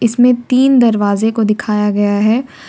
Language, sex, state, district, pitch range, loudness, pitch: Hindi, female, Jharkhand, Ranchi, 210-245 Hz, -13 LUFS, 225 Hz